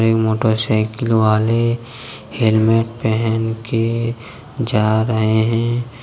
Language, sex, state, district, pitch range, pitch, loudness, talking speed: Hindi, male, Jharkhand, Deoghar, 110-115 Hz, 115 Hz, -17 LUFS, 100 wpm